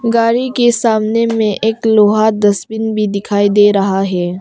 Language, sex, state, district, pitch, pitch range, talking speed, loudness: Hindi, female, Arunachal Pradesh, Longding, 215 Hz, 205-225 Hz, 165 wpm, -13 LUFS